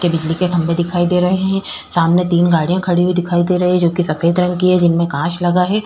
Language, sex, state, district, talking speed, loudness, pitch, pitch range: Hindi, female, Chhattisgarh, Korba, 275 wpm, -15 LUFS, 175 Hz, 170-180 Hz